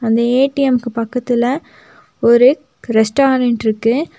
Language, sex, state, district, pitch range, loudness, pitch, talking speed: Tamil, female, Tamil Nadu, Nilgiris, 235-270 Hz, -15 LUFS, 245 Hz, 85 wpm